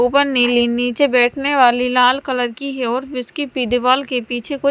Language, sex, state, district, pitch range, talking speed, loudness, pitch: Hindi, male, Punjab, Fazilka, 245-275 Hz, 165 wpm, -17 LUFS, 250 Hz